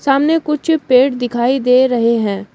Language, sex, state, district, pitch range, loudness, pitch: Hindi, female, Uttar Pradesh, Shamli, 240-285 Hz, -14 LUFS, 255 Hz